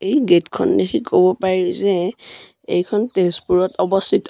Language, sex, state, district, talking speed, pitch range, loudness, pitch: Assamese, male, Assam, Sonitpur, 140 wpm, 180-215 Hz, -17 LUFS, 190 Hz